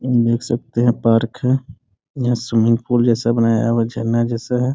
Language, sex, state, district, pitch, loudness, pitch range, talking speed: Hindi, male, Bihar, Sitamarhi, 120 Hz, -18 LUFS, 115-125 Hz, 190 wpm